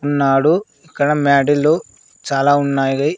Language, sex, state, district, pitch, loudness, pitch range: Telugu, male, Andhra Pradesh, Sri Satya Sai, 145 Hz, -16 LUFS, 140-150 Hz